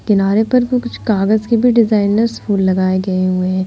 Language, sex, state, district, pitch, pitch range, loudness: Hindi, female, Uttar Pradesh, Hamirpur, 210 Hz, 185-230 Hz, -15 LUFS